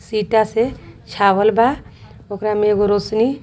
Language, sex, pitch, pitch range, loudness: Sadri, female, 215 Hz, 205-225 Hz, -17 LUFS